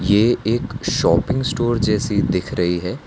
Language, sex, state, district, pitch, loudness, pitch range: Hindi, male, Gujarat, Valsad, 115 Hz, -19 LUFS, 100-130 Hz